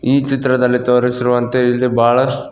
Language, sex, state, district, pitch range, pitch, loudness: Kannada, male, Karnataka, Koppal, 125-130 Hz, 125 Hz, -14 LUFS